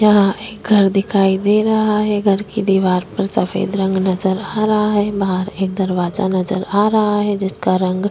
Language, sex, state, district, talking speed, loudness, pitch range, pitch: Hindi, female, Chhattisgarh, Korba, 200 wpm, -16 LUFS, 190-210 Hz, 195 Hz